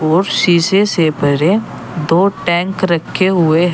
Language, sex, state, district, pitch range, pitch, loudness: Hindi, male, Uttar Pradesh, Saharanpur, 160-190 Hz, 175 Hz, -14 LUFS